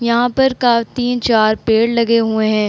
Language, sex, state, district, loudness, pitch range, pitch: Hindi, female, Bihar, Vaishali, -15 LUFS, 220-245 Hz, 235 Hz